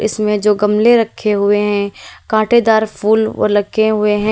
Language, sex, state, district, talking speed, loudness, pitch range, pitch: Hindi, female, Uttar Pradesh, Lalitpur, 165 wpm, -14 LUFS, 210-220 Hz, 210 Hz